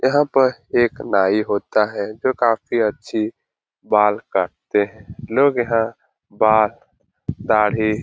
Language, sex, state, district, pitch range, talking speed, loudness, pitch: Hindi, male, Bihar, Jahanabad, 105-120 Hz, 125 wpm, -19 LUFS, 110 Hz